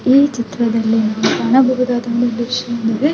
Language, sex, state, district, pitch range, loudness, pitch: Kannada, female, Karnataka, Mysore, 230-255 Hz, -16 LUFS, 240 Hz